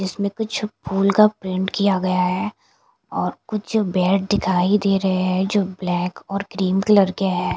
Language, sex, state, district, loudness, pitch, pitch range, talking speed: Hindi, female, Punjab, Kapurthala, -20 LUFS, 195 Hz, 185-205 Hz, 175 wpm